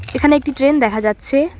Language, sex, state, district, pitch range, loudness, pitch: Bengali, female, West Bengal, Cooch Behar, 230-290 Hz, -15 LUFS, 280 Hz